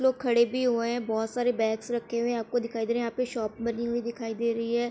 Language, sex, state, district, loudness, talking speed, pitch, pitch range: Hindi, female, Bihar, Saran, -28 LUFS, 305 wpm, 235 Hz, 230-240 Hz